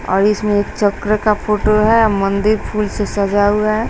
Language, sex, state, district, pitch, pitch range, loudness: Hindi, female, Bihar, West Champaran, 210 Hz, 205-215 Hz, -15 LUFS